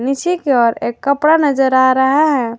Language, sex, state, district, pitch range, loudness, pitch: Hindi, female, Jharkhand, Garhwa, 260-295 Hz, -14 LUFS, 270 Hz